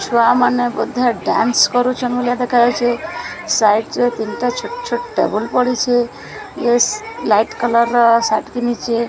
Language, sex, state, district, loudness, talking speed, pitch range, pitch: Odia, female, Odisha, Sambalpur, -16 LUFS, 130 wpm, 235-245 Hz, 240 Hz